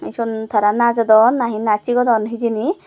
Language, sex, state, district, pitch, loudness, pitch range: Chakma, female, Tripura, Dhalai, 230 Hz, -16 LUFS, 220-235 Hz